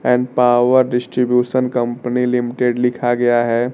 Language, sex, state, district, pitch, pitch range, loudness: Hindi, male, Bihar, Kaimur, 125 Hz, 120-125 Hz, -16 LUFS